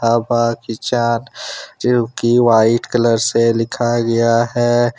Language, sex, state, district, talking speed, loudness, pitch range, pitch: Hindi, male, Jharkhand, Deoghar, 70 wpm, -15 LUFS, 115-120 Hz, 120 Hz